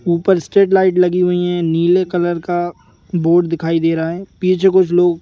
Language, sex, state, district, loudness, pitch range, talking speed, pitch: Hindi, male, Madhya Pradesh, Bhopal, -15 LUFS, 170-185 Hz, 205 wpm, 175 Hz